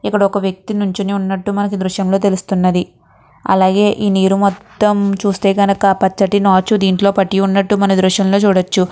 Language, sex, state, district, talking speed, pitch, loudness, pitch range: Telugu, female, Andhra Pradesh, Guntur, 150 wpm, 195 Hz, -14 LUFS, 190-200 Hz